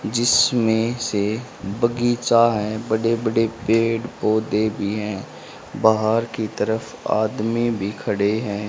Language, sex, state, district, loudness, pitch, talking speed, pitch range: Hindi, male, Haryana, Rohtak, -21 LUFS, 110 Hz, 115 wpm, 105-115 Hz